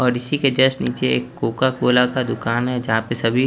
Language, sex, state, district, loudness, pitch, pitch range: Hindi, male, Chandigarh, Chandigarh, -19 LUFS, 125 Hz, 115-130 Hz